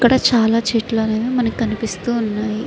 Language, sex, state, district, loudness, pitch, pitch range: Telugu, female, Andhra Pradesh, Srikakulam, -18 LUFS, 225 Hz, 220-240 Hz